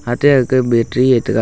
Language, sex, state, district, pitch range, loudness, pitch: Wancho, male, Arunachal Pradesh, Longding, 120-130 Hz, -14 LUFS, 130 Hz